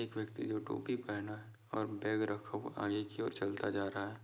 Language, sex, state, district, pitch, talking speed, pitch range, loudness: Hindi, male, Maharashtra, Dhule, 105 Hz, 240 wpm, 105-110 Hz, -40 LUFS